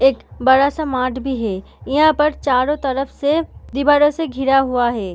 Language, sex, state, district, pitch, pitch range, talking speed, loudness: Hindi, female, Bihar, Samastipur, 270 Hz, 255-295 Hz, 185 wpm, -17 LUFS